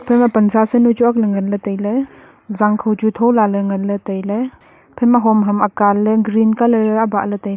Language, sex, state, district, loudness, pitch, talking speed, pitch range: Wancho, female, Arunachal Pradesh, Longding, -15 LUFS, 215 Hz, 165 wpm, 205-235 Hz